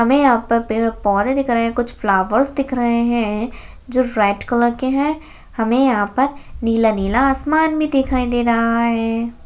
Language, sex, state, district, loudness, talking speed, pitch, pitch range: Hindi, female, Bihar, Jahanabad, -17 LUFS, 170 wpm, 235 Hz, 225-265 Hz